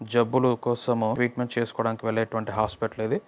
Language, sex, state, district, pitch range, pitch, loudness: Telugu, male, Andhra Pradesh, Anantapur, 110-120 Hz, 115 Hz, -26 LUFS